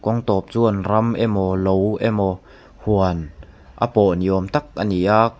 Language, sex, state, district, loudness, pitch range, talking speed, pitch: Mizo, male, Mizoram, Aizawl, -19 LUFS, 95-110 Hz, 165 wpm, 100 Hz